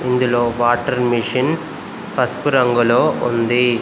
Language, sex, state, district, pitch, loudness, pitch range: Telugu, male, Telangana, Komaram Bheem, 120 Hz, -17 LUFS, 120-125 Hz